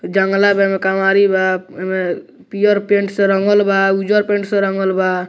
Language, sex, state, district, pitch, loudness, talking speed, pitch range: Bhojpuri, male, Bihar, Muzaffarpur, 195 Hz, -15 LUFS, 180 wpm, 190-200 Hz